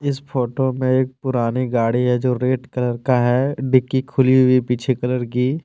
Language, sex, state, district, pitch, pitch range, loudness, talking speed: Hindi, male, Jharkhand, Deoghar, 130 Hz, 125-130 Hz, -19 LUFS, 200 wpm